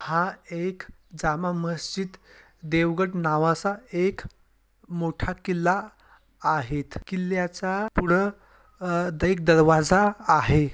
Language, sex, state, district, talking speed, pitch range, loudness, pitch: Marathi, male, Maharashtra, Sindhudurg, 90 wpm, 165-190 Hz, -25 LUFS, 175 Hz